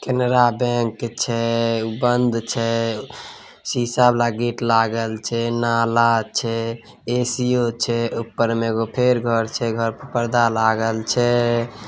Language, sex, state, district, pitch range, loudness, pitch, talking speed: Maithili, male, Bihar, Samastipur, 115-120 Hz, -20 LUFS, 115 Hz, 130 wpm